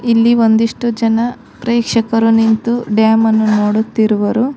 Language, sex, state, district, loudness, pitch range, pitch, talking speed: Kannada, female, Karnataka, Koppal, -13 LUFS, 220-235 Hz, 225 Hz, 105 wpm